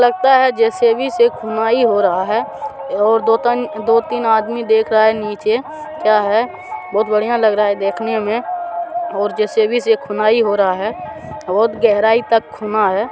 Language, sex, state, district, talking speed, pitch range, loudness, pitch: Hindi, male, Bihar, Supaul, 180 wpm, 215-240 Hz, -16 LUFS, 225 Hz